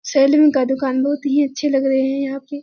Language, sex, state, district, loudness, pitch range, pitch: Hindi, female, Bihar, Kishanganj, -17 LUFS, 270-285 Hz, 275 Hz